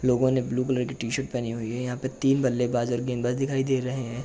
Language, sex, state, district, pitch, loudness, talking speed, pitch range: Hindi, male, Uttar Pradesh, Jalaun, 125 Hz, -26 LUFS, 270 wpm, 120-130 Hz